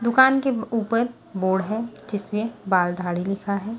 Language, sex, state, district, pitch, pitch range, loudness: Hindi, female, Punjab, Pathankot, 215 Hz, 195-230 Hz, -23 LUFS